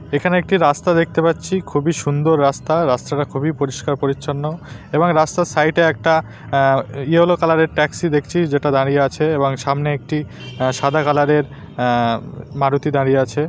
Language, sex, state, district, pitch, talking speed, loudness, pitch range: Bengali, male, West Bengal, North 24 Parganas, 145 Hz, 165 wpm, -17 LUFS, 140-160 Hz